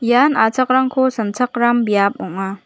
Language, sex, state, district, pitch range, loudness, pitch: Garo, female, Meghalaya, West Garo Hills, 205-255 Hz, -16 LUFS, 240 Hz